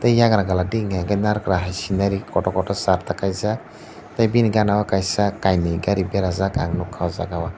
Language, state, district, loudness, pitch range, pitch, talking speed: Kokborok, Tripura, Dhalai, -21 LUFS, 90-105 Hz, 95 Hz, 190 wpm